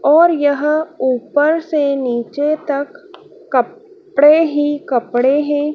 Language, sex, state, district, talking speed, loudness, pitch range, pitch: Hindi, female, Madhya Pradesh, Dhar, 115 wpm, -15 LUFS, 280-330 Hz, 295 Hz